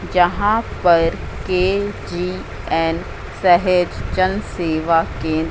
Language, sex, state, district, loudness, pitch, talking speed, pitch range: Hindi, female, Madhya Pradesh, Katni, -18 LUFS, 170 Hz, 75 wpm, 160-185 Hz